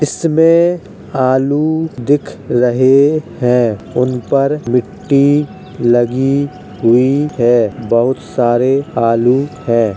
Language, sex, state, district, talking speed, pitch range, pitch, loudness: Hindi, male, Uttar Pradesh, Jalaun, 90 wpm, 120-145 Hz, 130 Hz, -13 LUFS